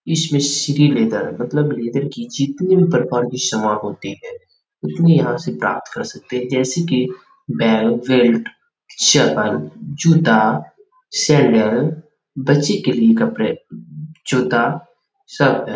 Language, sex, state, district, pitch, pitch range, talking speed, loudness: Hindi, male, Bihar, Sitamarhi, 145 Hz, 125-185 Hz, 130 wpm, -17 LUFS